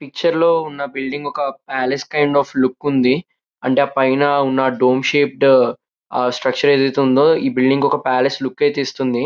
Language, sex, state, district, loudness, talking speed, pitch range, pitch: Telugu, male, Andhra Pradesh, Krishna, -17 LUFS, 170 wpm, 130-145 Hz, 135 Hz